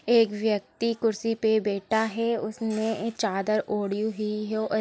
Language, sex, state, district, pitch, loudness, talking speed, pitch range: Hindi, female, Chhattisgarh, Korba, 220 Hz, -27 LUFS, 135 wpm, 210-225 Hz